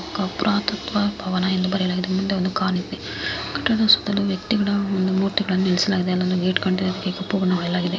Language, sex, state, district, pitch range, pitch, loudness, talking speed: Kannada, female, Karnataka, Mysore, 185-200 Hz, 190 Hz, -22 LUFS, 175 wpm